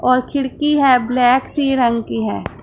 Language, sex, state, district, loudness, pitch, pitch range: Hindi, female, Punjab, Pathankot, -16 LUFS, 255 Hz, 230-270 Hz